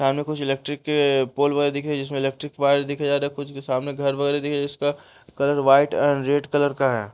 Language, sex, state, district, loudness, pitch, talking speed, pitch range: Hindi, male, Bihar, West Champaran, -22 LUFS, 140 Hz, 235 wpm, 135-145 Hz